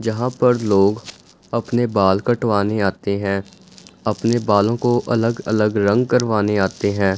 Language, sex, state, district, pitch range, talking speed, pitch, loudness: Hindi, male, Punjab, Fazilka, 100-120 Hz, 140 wpm, 105 Hz, -18 LUFS